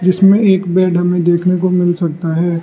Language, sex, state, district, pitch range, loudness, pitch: Hindi, male, Arunachal Pradesh, Lower Dibang Valley, 175-185 Hz, -13 LUFS, 175 Hz